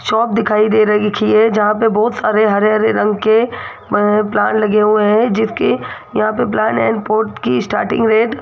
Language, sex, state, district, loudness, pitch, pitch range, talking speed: Hindi, female, Rajasthan, Jaipur, -14 LUFS, 215 Hz, 210-225 Hz, 205 wpm